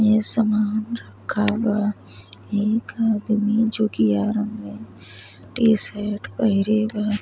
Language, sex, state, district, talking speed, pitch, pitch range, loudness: Bhojpuri, female, Uttar Pradesh, Deoria, 100 wpm, 210 Hz, 195-215 Hz, -20 LUFS